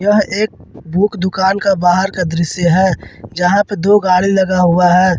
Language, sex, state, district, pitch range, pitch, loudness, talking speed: Hindi, male, Jharkhand, Ranchi, 180-195 Hz, 185 Hz, -13 LUFS, 185 wpm